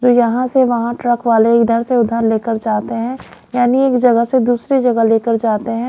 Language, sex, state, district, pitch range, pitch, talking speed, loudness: Hindi, female, Haryana, Jhajjar, 230-245 Hz, 235 Hz, 215 wpm, -15 LUFS